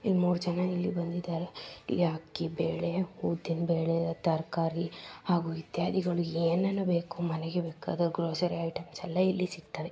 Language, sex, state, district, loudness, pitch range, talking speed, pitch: Kannada, female, Karnataka, Gulbarga, -32 LUFS, 165-180 Hz, 120 wpm, 170 Hz